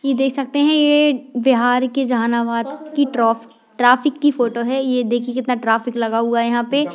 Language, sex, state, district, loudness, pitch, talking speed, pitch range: Hindi, female, Bihar, Jahanabad, -17 LUFS, 250 Hz, 200 wpm, 235-275 Hz